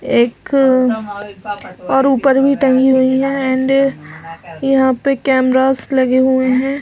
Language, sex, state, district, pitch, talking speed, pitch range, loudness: Hindi, female, Chhattisgarh, Balrampur, 260 Hz, 130 wpm, 240-270 Hz, -14 LUFS